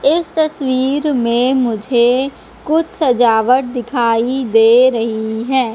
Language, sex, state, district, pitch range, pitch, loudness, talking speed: Hindi, female, Madhya Pradesh, Katni, 235-270 Hz, 255 Hz, -14 LUFS, 105 wpm